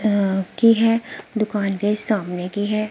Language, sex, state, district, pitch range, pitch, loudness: Hindi, female, Himachal Pradesh, Shimla, 200-225 Hz, 210 Hz, -18 LUFS